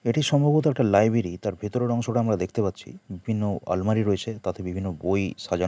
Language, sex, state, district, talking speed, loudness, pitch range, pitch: Bengali, male, West Bengal, Kolkata, 180 wpm, -25 LUFS, 95-115 Hz, 105 Hz